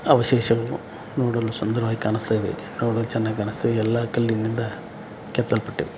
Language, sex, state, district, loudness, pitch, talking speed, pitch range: Kannada, male, Karnataka, Belgaum, -23 LUFS, 115 Hz, 90 wpm, 110-120 Hz